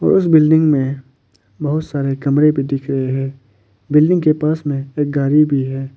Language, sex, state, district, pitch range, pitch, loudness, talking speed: Hindi, male, Arunachal Pradesh, Papum Pare, 135-150 Hz, 140 Hz, -16 LUFS, 190 wpm